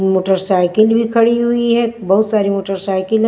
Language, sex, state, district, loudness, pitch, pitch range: Hindi, female, Maharashtra, Washim, -14 LUFS, 215 Hz, 190-230 Hz